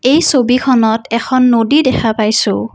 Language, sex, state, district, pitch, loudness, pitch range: Assamese, female, Assam, Kamrup Metropolitan, 245 Hz, -12 LUFS, 225-260 Hz